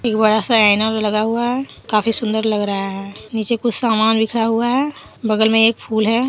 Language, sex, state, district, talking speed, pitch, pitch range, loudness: Hindi, female, Jharkhand, Deoghar, 220 wpm, 220 Hz, 215-235 Hz, -17 LUFS